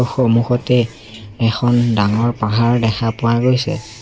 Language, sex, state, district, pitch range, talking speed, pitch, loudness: Assamese, male, Assam, Sonitpur, 110-125 Hz, 105 wpm, 115 Hz, -16 LUFS